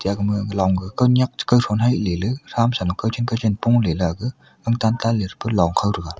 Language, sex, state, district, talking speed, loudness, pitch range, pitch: Wancho, male, Arunachal Pradesh, Longding, 250 wpm, -20 LUFS, 95-120 Hz, 110 Hz